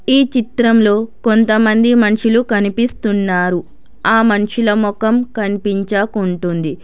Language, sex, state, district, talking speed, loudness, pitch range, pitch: Telugu, female, Telangana, Hyderabad, 80 wpm, -14 LUFS, 200-230 Hz, 215 Hz